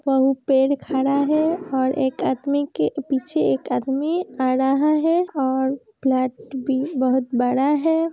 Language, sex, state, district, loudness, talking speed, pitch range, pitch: Hindi, female, Uttar Pradesh, Hamirpur, -21 LUFS, 140 wpm, 260-295 Hz, 270 Hz